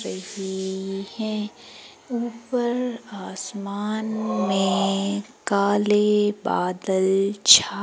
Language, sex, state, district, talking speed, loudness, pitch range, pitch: Hindi, female, Madhya Pradesh, Umaria, 60 wpm, -23 LUFS, 195-220 Hz, 205 Hz